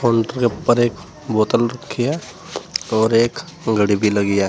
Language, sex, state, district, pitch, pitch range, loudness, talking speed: Hindi, male, Uttar Pradesh, Saharanpur, 115 Hz, 110-120 Hz, -19 LUFS, 160 wpm